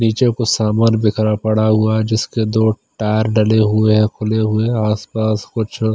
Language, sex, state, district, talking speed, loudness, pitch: Hindi, male, Chandigarh, Chandigarh, 190 wpm, -16 LUFS, 110 Hz